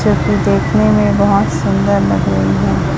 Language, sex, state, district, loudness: Hindi, female, Chhattisgarh, Raipur, -13 LUFS